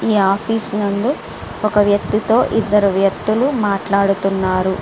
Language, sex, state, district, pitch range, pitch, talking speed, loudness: Telugu, female, Andhra Pradesh, Srikakulam, 195-220 Hz, 205 Hz, 110 wpm, -16 LUFS